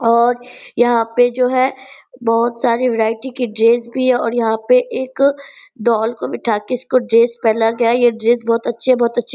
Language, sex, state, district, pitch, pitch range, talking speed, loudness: Hindi, female, Bihar, Purnia, 240 Hz, 230-250 Hz, 210 wpm, -16 LUFS